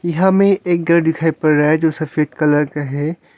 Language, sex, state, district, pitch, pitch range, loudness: Hindi, male, Arunachal Pradesh, Longding, 160 Hz, 150-170 Hz, -16 LUFS